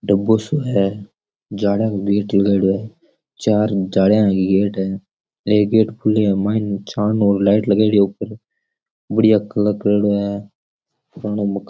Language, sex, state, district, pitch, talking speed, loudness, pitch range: Rajasthani, male, Rajasthan, Churu, 105 Hz, 145 wpm, -17 LUFS, 100-105 Hz